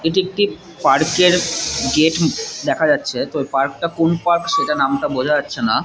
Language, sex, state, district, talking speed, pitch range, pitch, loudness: Bengali, male, West Bengal, Jalpaiguri, 185 wpm, 160-205 Hz, 170 Hz, -17 LUFS